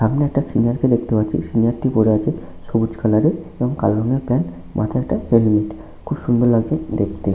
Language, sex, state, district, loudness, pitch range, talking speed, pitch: Bengali, male, West Bengal, Malda, -19 LUFS, 105-130 Hz, 210 wpm, 115 Hz